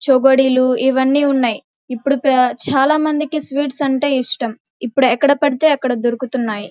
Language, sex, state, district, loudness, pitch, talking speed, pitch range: Telugu, female, Andhra Pradesh, Krishna, -16 LUFS, 265 Hz, 115 wpm, 250-285 Hz